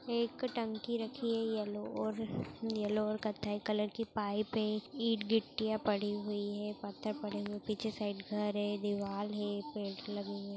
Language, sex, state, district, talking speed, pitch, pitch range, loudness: Hindi, female, Bihar, Madhepura, 175 wpm, 210 Hz, 205-220 Hz, -37 LUFS